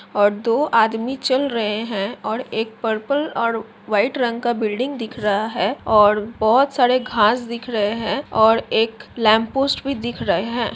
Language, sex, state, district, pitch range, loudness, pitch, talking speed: Hindi, female, Jharkhand, Jamtara, 215-245 Hz, -19 LUFS, 230 Hz, 180 wpm